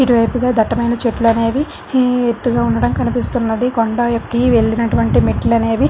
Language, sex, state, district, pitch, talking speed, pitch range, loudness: Telugu, female, Andhra Pradesh, Srikakulam, 235 Hz, 140 wpm, 225-245 Hz, -15 LUFS